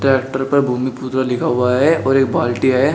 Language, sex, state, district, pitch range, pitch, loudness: Hindi, male, Uttar Pradesh, Shamli, 125-135 Hz, 130 Hz, -16 LUFS